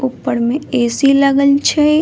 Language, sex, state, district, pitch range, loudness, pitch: Maithili, female, Bihar, Madhepura, 250-280 Hz, -13 LUFS, 275 Hz